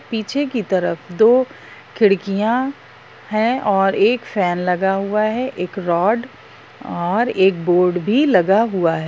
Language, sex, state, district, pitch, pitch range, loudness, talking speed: Hindi, female, Bihar, Darbhanga, 205 Hz, 180-235 Hz, -18 LUFS, 140 wpm